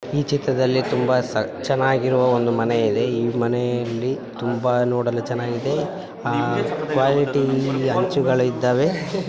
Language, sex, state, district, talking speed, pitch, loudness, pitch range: Kannada, female, Karnataka, Bijapur, 90 wpm, 130 Hz, -21 LUFS, 120-135 Hz